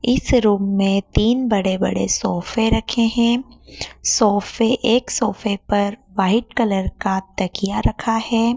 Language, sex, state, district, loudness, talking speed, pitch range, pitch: Hindi, female, Madhya Pradesh, Dhar, -19 LUFS, 135 wpm, 195-235 Hz, 225 Hz